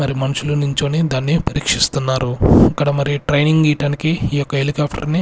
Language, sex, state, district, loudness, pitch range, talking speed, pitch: Telugu, male, Andhra Pradesh, Sri Satya Sai, -16 LUFS, 135-150 Hz, 150 wpm, 145 Hz